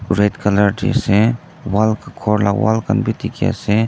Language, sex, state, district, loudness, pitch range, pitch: Nagamese, male, Nagaland, Dimapur, -17 LUFS, 100-115 Hz, 105 Hz